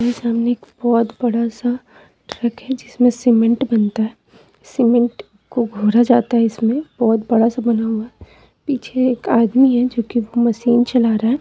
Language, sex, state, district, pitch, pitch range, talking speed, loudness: Hindi, female, West Bengal, Purulia, 235 Hz, 230-245 Hz, 180 wpm, -17 LUFS